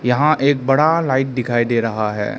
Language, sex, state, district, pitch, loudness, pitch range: Hindi, male, Arunachal Pradesh, Lower Dibang Valley, 130 Hz, -17 LUFS, 120-140 Hz